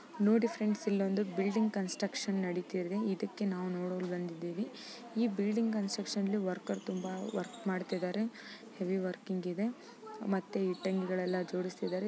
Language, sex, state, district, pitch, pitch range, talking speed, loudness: Kannada, female, Karnataka, Gulbarga, 195 Hz, 185-215 Hz, 120 wpm, -35 LUFS